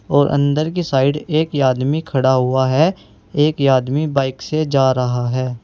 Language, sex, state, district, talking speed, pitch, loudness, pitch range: Hindi, male, Uttar Pradesh, Saharanpur, 170 wpm, 140 Hz, -17 LUFS, 130-150 Hz